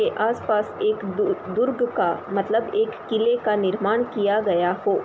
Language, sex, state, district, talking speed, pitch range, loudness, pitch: Hindi, female, Uttar Pradesh, Ghazipur, 180 wpm, 205-250 Hz, -23 LUFS, 225 Hz